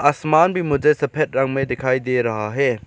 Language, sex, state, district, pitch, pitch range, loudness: Hindi, male, Arunachal Pradesh, Lower Dibang Valley, 135 Hz, 125-150 Hz, -19 LUFS